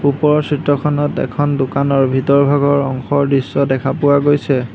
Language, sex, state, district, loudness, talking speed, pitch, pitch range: Assamese, male, Assam, Hailakandi, -15 LUFS, 140 wpm, 140 Hz, 135-145 Hz